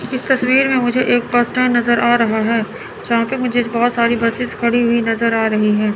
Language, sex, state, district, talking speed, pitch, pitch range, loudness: Hindi, male, Chandigarh, Chandigarh, 230 wpm, 235 Hz, 230-245 Hz, -16 LUFS